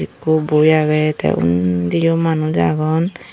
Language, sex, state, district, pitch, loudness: Chakma, female, Tripura, Unakoti, 155 Hz, -16 LUFS